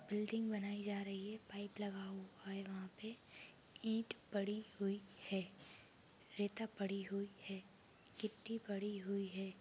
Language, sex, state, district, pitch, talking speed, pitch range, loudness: Hindi, female, Chhattisgarh, Kabirdham, 200 Hz, 145 wpm, 195-210 Hz, -46 LUFS